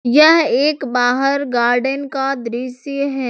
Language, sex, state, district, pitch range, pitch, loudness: Hindi, female, Jharkhand, Ranchi, 245-280 Hz, 270 Hz, -16 LUFS